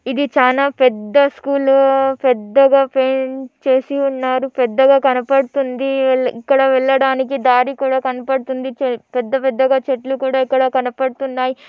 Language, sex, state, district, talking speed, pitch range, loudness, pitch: Telugu, female, Andhra Pradesh, Anantapur, 95 wpm, 260-270 Hz, -16 LUFS, 265 Hz